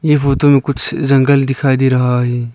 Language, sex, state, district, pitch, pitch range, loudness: Hindi, male, Arunachal Pradesh, Lower Dibang Valley, 135 Hz, 130-140 Hz, -13 LUFS